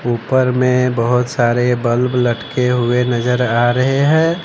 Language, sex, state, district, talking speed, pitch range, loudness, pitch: Hindi, male, Bihar, West Champaran, 150 wpm, 120-125 Hz, -15 LUFS, 125 Hz